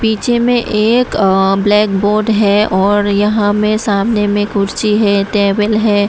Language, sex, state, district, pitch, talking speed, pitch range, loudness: Hindi, female, Tripura, West Tripura, 210 Hz, 160 wpm, 200-215 Hz, -12 LUFS